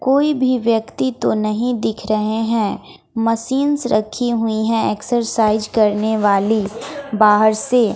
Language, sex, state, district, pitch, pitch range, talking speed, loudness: Hindi, female, Bihar, West Champaran, 225 Hz, 215-245 Hz, 130 wpm, -17 LUFS